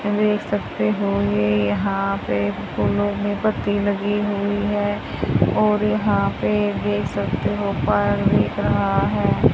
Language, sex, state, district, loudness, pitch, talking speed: Hindi, female, Haryana, Jhajjar, -21 LUFS, 195 Hz, 130 wpm